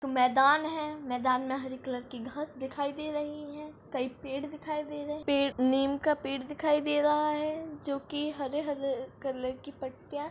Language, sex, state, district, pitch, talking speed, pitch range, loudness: Hindi, female, Maharashtra, Solapur, 285 Hz, 190 wpm, 265-300 Hz, -31 LUFS